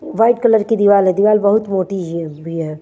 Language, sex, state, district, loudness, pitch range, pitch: Hindi, female, Himachal Pradesh, Shimla, -15 LUFS, 170-215 Hz, 200 Hz